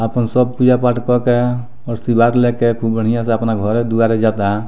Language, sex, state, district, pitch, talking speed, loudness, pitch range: Bhojpuri, male, Bihar, Muzaffarpur, 115 Hz, 165 wpm, -15 LUFS, 115-120 Hz